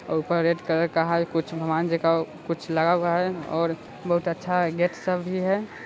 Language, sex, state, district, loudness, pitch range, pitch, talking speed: Hindi, male, Bihar, Sitamarhi, -25 LUFS, 165-175 Hz, 170 Hz, 175 wpm